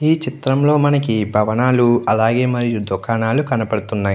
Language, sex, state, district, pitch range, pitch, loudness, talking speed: Telugu, male, Andhra Pradesh, Chittoor, 110-135 Hz, 120 Hz, -17 LUFS, 130 wpm